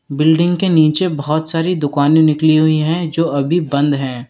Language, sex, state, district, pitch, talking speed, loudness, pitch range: Hindi, male, Uttar Pradesh, Lalitpur, 155 Hz, 180 wpm, -15 LUFS, 145-165 Hz